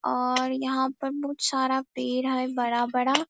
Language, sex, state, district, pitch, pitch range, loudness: Hindi, female, Bihar, Darbhanga, 260 Hz, 255-265 Hz, -27 LUFS